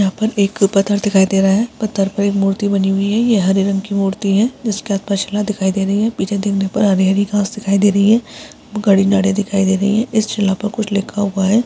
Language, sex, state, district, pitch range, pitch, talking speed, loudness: Hindi, female, Chhattisgarh, Balrampur, 195-210 Hz, 200 Hz, 250 wpm, -16 LUFS